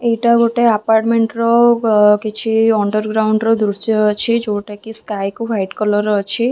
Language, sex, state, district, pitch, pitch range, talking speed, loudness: Odia, female, Odisha, Khordha, 220 Hz, 210-230 Hz, 145 wpm, -15 LUFS